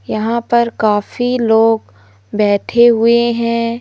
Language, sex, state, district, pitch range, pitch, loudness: Hindi, female, Madhya Pradesh, Umaria, 215-235 Hz, 230 Hz, -14 LUFS